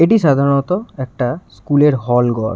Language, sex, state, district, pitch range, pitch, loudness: Bengali, male, West Bengal, Jalpaiguri, 120-150 Hz, 135 Hz, -15 LUFS